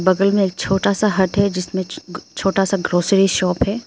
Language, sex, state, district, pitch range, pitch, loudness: Hindi, female, Arunachal Pradesh, Lower Dibang Valley, 185-200 Hz, 195 Hz, -18 LUFS